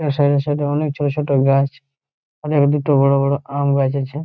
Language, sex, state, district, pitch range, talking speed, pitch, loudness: Bengali, male, West Bengal, Jhargram, 140-145 Hz, 225 wpm, 140 Hz, -17 LUFS